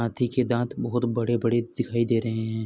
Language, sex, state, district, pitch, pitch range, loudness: Hindi, male, Uttar Pradesh, Jalaun, 120 Hz, 115-120 Hz, -25 LUFS